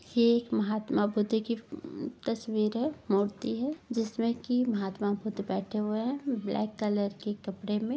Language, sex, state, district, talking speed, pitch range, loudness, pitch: Hindi, female, Bihar, Gaya, 165 wpm, 210-245 Hz, -31 LUFS, 220 Hz